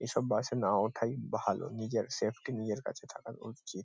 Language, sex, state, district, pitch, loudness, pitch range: Bengali, male, West Bengal, Kolkata, 110 Hz, -35 LUFS, 105-115 Hz